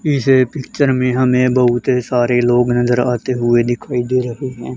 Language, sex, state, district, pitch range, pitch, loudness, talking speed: Hindi, male, Haryana, Charkhi Dadri, 120-130 Hz, 125 Hz, -15 LUFS, 175 wpm